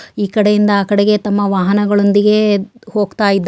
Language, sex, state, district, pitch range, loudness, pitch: Kannada, female, Karnataka, Shimoga, 200-210 Hz, -13 LUFS, 205 Hz